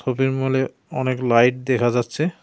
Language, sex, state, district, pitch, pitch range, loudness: Bengali, male, West Bengal, Cooch Behar, 130 Hz, 120-135 Hz, -20 LUFS